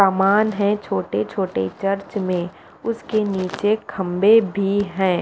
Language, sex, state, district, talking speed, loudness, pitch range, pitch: Hindi, female, Punjab, Fazilka, 125 wpm, -20 LUFS, 185-205 Hz, 195 Hz